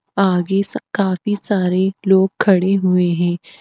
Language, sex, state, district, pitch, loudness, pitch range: Hindi, female, Uttar Pradesh, Etah, 190 Hz, -17 LUFS, 180-195 Hz